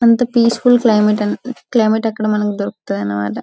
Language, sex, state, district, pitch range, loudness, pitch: Telugu, female, Telangana, Karimnagar, 210-235 Hz, -15 LUFS, 220 Hz